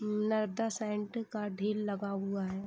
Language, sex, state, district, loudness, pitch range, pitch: Hindi, female, Bihar, East Champaran, -35 LUFS, 200-215 Hz, 210 Hz